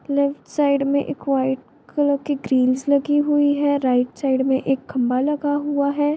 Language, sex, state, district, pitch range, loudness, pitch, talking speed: Hindi, female, Bihar, Gopalganj, 265-290 Hz, -20 LUFS, 280 Hz, 175 wpm